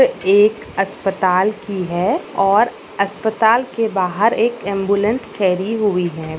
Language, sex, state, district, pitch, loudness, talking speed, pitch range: Hindi, female, Maharashtra, Nagpur, 200 Hz, -17 LUFS, 120 wpm, 190-220 Hz